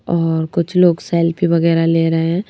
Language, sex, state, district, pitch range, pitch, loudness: Hindi, female, Madhya Pradesh, Bhopal, 165-170 Hz, 170 Hz, -15 LUFS